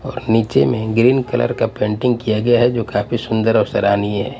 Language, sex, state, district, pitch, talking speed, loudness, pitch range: Hindi, male, Punjab, Pathankot, 115 Hz, 220 wpm, -17 LUFS, 110-120 Hz